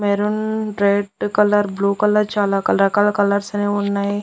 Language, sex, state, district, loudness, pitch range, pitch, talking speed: Telugu, female, Andhra Pradesh, Annamaya, -18 LUFS, 200-210 Hz, 205 Hz, 140 wpm